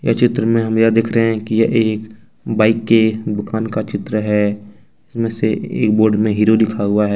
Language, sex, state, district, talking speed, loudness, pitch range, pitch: Hindi, male, Jharkhand, Ranchi, 210 wpm, -16 LUFS, 105-115 Hz, 110 Hz